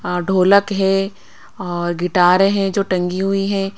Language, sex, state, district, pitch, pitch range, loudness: Hindi, female, Bihar, Patna, 195 Hz, 180-195 Hz, -17 LUFS